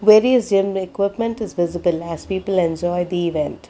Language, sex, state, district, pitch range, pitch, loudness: English, female, Karnataka, Bangalore, 175-200 Hz, 190 Hz, -20 LUFS